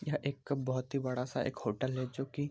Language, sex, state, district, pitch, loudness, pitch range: Hindi, male, Bihar, Araria, 130 Hz, -36 LUFS, 130-140 Hz